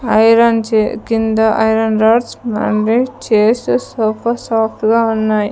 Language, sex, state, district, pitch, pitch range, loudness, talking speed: Telugu, female, Andhra Pradesh, Sri Satya Sai, 220 Hz, 220-230 Hz, -14 LUFS, 120 wpm